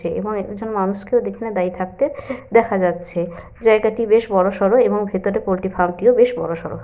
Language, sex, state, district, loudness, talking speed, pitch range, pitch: Bengali, female, Jharkhand, Sahebganj, -19 LUFS, 165 wpm, 185-225 Hz, 200 Hz